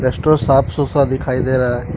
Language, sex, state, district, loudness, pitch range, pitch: Hindi, male, Jharkhand, Deoghar, -16 LUFS, 125-140 Hz, 130 Hz